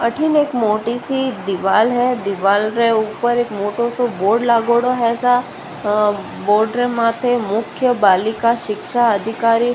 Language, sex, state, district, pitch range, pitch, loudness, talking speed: Rajasthani, female, Rajasthan, Nagaur, 210-245 Hz, 230 Hz, -17 LUFS, 150 wpm